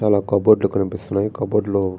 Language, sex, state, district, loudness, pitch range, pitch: Telugu, male, Andhra Pradesh, Srikakulam, -19 LUFS, 100-105 Hz, 100 Hz